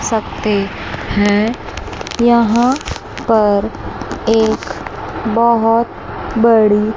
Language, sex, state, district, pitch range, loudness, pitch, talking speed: Hindi, female, Chandigarh, Chandigarh, 200-230 Hz, -15 LUFS, 220 Hz, 60 wpm